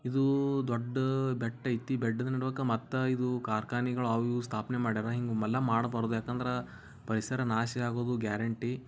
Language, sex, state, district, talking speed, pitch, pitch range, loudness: Kannada, male, Karnataka, Bijapur, 110 wpm, 120 Hz, 115-130 Hz, -32 LUFS